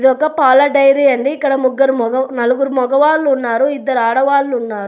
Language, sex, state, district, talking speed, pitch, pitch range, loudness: Telugu, female, Telangana, Hyderabad, 145 wpm, 265 Hz, 255-275 Hz, -13 LUFS